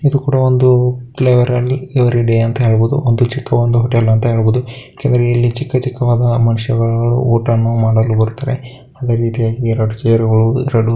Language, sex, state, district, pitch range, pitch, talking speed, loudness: Kannada, male, Karnataka, Bellary, 115-125 Hz, 120 Hz, 120 wpm, -14 LUFS